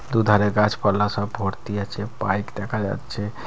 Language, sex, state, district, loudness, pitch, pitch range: Bengali, male, Bihar, Katihar, -23 LUFS, 105 Hz, 100-110 Hz